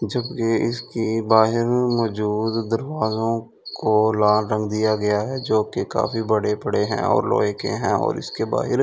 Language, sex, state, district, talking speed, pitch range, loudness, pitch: Hindi, male, Delhi, New Delhi, 165 wpm, 105-115 Hz, -21 LUFS, 110 Hz